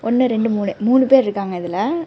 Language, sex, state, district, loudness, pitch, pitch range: Tamil, female, Karnataka, Bangalore, -17 LUFS, 225 Hz, 200-260 Hz